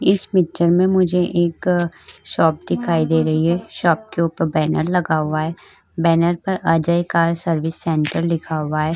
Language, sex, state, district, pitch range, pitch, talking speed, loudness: Hindi, female, Uttar Pradesh, Budaun, 160-175 Hz, 170 Hz, 175 wpm, -19 LUFS